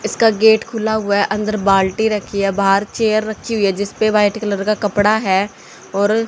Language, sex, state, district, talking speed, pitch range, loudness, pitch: Hindi, female, Haryana, Charkhi Dadri, 210 wpm, 200-220 Hz, -16 LUFS, 210 Hz